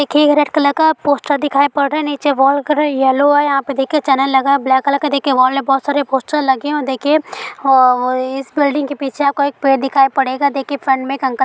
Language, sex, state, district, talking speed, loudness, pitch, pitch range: Hindi, female, Bihar, Jamui, 265 wpm, -14 LUFS, 280 Hz, 270-290 Hz